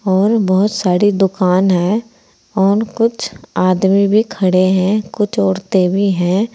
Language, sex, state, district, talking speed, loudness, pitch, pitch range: Hindi, female, Uttar Pradesh, Saharanpur, 135 wpm, -14 LUFS, 195 Hz, 185-210 Hz